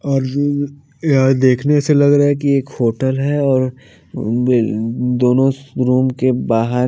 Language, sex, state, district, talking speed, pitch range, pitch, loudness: Hindi, female, Haryana, Charkhi Dadri, 150 wpm, 125-140 Hz, 130 Hz, -16 LUFS